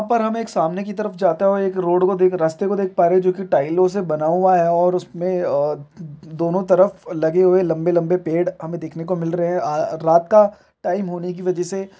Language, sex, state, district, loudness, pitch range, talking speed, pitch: Hindi, male, Uttar Pradesh, Muzaffarnagar, -19 LUFS, 170-195 Hz, 260 wpm, 180 Hz